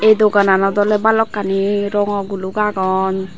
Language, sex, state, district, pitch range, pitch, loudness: Chakma, female, Tripura, Dhalai, 190-210 Hz, 205 Hz, -16 LUFS